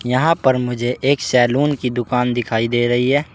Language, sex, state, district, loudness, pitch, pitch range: Hindi, male, Uttar Pradesh, Saharanpur, -17 LUFS, 125 Hz, 120-135 Hz